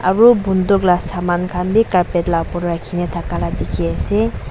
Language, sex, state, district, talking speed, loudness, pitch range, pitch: Nagamese, female, Nagaland, Dimapur, 185 wpm, -17 LUFS, 165-185 Hz, 175 Hz